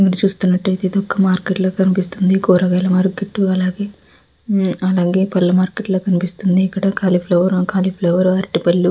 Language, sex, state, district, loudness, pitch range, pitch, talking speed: Telugu, female, Andhra Pradesh, Visakhapatnam, -16 LUFS, 185-195 Hz, 185 Hz, 115 wpm